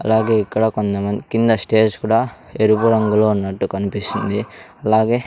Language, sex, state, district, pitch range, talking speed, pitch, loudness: Telugu, male, Andhra Pradesh, Sri Satya Sai, 105-115 Hz, 135 wpm, 110 Hz, -18 LUFS